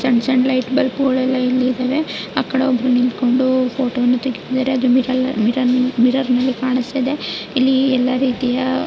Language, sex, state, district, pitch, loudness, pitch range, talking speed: Kannada, female, Karnataka, Raichur, 255 Hz, -17 LUFS, 250-260 Hz, 160 wpm